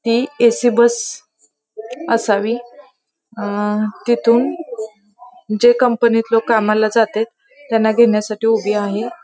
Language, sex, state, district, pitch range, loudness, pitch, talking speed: Marathi, female, Maharashtra, Pune, 215-240 Hz, -16 LUFS, 225 Hz, 95 wpm